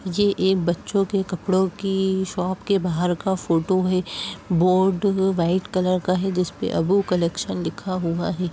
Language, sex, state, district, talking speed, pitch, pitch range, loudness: Hindi, female, Uttar Pradesh, Jyotiba Phule Nagar, 160 wpm, 185 Hz, 180-190 Hz, -22 LUFS